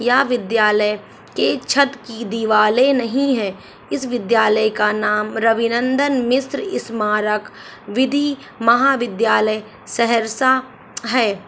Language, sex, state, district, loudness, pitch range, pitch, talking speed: Hindi, female, Bihar, Saharsa, -18 LUFS, 215-260 Hz, 230 Hz, 100 wpm